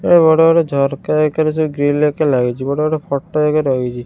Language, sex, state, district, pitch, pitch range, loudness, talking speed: Odia, female, Odisha, Khordha, 150 Hz, 140-155 Hz, -15 LUFS, 205 wpm